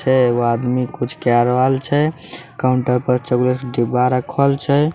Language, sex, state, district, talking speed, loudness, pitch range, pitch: Maithili, male, Bihar, Samastipur, 170 wpm, -17 LUFS, 125-140 Hz, 125 Hz